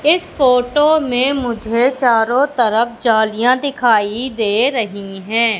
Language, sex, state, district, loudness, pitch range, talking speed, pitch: Hindi, female, Madhya Pradesh, Katni, -15 LUFS, 225-260 Hz, 120 wpm, 240 Hz